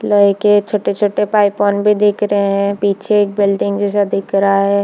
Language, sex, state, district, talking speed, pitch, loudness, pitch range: Hindi, female, Chhattisgarh, Bilaspur, 210 wpm, 205 Hz, -14 LUFS, 200-205 Hz